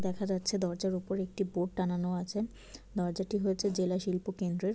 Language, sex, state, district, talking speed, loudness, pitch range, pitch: Bengali, female, West Bengal, Malda, 175 wpm, -34 LUFS, 180-195 Hz, 190 Hz